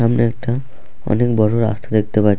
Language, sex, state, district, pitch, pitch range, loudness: Bengali, male, West Bengal, Purulia, 115 Hz, 105-120 Hz, -18 LUFS